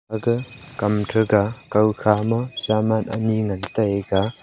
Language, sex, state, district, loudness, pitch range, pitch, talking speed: Wancho, male, Arunachal Pradesh, Longding, -21 LUFS, 105-115 Hz, 110 Hz, 120 wpm